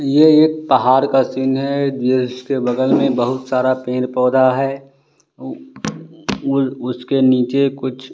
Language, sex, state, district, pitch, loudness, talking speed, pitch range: Hindi, male, Bihar, West Champaran, 130 Hz, -16 LUFS, 125 wpm, 125-135 Hz